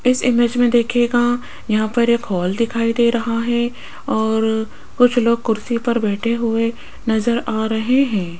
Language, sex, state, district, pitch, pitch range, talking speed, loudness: Hindi, female, Rajasthan, Jaipur, 235 Hz, 220-240 Hz, 165 wpm, -18 LUFS